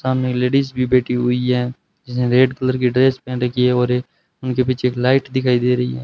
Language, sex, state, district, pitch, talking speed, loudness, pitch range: Hindi, male, Rajasthan, Bikaner, 125 Hz, 230 wpm, -18 LUFS, 125-130 Hz